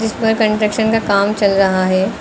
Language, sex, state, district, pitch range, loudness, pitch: Hindi, female, Uttar Pradesh, Lucknow, 195-220 Hz, -15 LUFS, 215 Hz